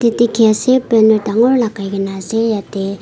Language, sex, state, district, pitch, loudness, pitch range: Nagamese, female, Nagaland, Kohima, 220 Hz, -14 LUFS, 200-235 Hz